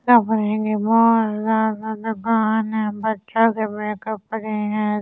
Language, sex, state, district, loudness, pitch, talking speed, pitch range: Hindi, female, Delhi, New Delhi, -20 LUFS, 220 Hz, 110 wpm, 215-225 Hz